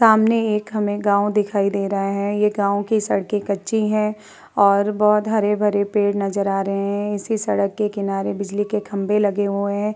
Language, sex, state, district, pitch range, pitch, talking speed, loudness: Hindi, female, Uttar Pradesh, Hamirpur, 200-210 Hz, 205 Hz, 195 wpm, -20 LUFS